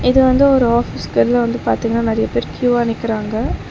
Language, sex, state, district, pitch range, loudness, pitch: Tamil, female, Tamil Nadu, Chennai, 225-250 Hz, -16 LUFS, 235 Hz